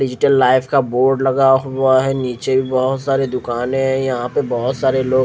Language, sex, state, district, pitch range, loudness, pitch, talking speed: Hindi, male, Odisha, Khordha, 130-135 Hz, -16 LUFS, 130 Hz, 195 wpm